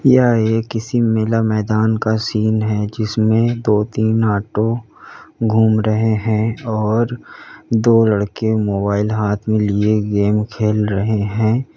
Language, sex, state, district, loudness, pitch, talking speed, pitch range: Hindi, male, Uttar Pradesh, Lalitpur, -17 LUFS, 110 Hz, 125 wpm, 105-115 Hz